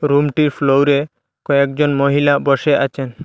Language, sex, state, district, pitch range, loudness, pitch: Bengali, male, Assam, Hailakandi, 140-145 Hz, -15 LUFS, 140 Hz